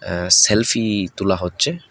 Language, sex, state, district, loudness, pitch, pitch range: Bengali, male, Tripura, West Tripura, -16 LUFS, 100 Hz, 90-115 Hz